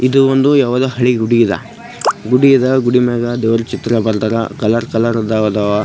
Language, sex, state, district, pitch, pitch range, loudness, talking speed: Kannada, male, Karnataka, Gulbarga, 120 Hz, 110-130 Hz, -14 LUFS, 105 wpm